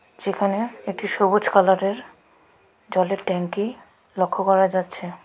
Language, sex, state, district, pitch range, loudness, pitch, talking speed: Bengali, female, West Bengal, Alipurduar, 185-200 Hz, -22 LUFS, 195 Hz, 105 wpm